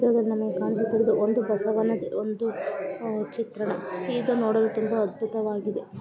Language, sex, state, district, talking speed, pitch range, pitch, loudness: Kannada, female, Karnataka, Shimoga, 130 wpm, 210-225 Hz, 220 Hz, -26 LUFS